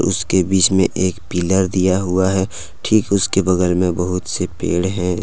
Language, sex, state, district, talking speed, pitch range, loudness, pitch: Hindi, male, Jharkhand, Deoghar, 185 wpm, 90-95 Hz, -17 LUFS, 95 Hz